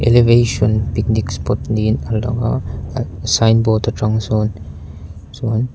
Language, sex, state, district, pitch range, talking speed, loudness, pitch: Mizo, male, Mizoram, Aizawl, 105-115 Hz, 135 wpm, -17 LUFS, 110 Hz